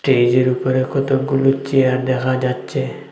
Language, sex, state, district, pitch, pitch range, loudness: Bengali, male, Assam, Hailakandi, 130 Hz, 130-135 Hz, -17 LUFS